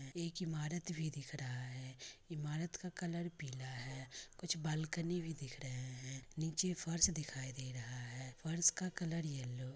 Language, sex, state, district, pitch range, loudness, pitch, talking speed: Hindi, female, Bihar, Muzaffarpur, 130-170 Hz, -42 LUFS, 150 Hz, 170 wpm